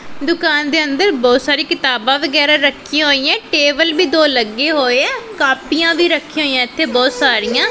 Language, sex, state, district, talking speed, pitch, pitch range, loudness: Punjabi, female, Punjab, Pathankot, 165 wpm, 300 Hz, 275-325 Hz, -13 LUFS